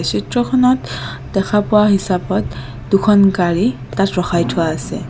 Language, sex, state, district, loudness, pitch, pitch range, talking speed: Assamese, female, Assam, Kamrup Metropolitan, -16 LUFS, 195 Hz, 180-210 Hz, 115 wpm